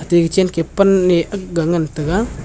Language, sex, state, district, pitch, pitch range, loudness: Wancho, male, Arunachal Pradesh, Longding, 175 Hz, 165-190 Hz, -16 LUFS